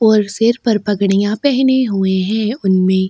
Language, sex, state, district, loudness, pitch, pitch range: Hindi, female, Chhattisgarh, Sukma, -15 LUFS, 210 Hz, 195-230 Hz